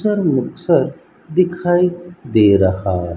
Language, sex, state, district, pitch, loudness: Hindi, male, Rajasthan, Bikaner, 160 Hz, -16 LUFS